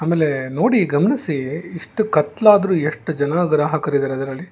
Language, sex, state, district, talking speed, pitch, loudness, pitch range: Kannada, male, Karnataka, Bangalore, 130 wpm, 155 Hz, -18 LUFS, 145-185 Hz